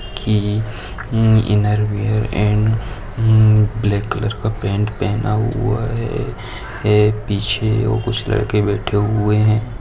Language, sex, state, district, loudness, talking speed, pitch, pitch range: Hindi, male, Bihar, Bhagalpur, -17 LUFS, 115 wpm, 105 Hz, 105-110 Hz